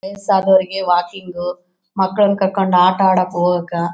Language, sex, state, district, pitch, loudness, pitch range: Kannada, male, Karnataka, Bellary, 185 Hz, -16 LUFS, 180-195 Hz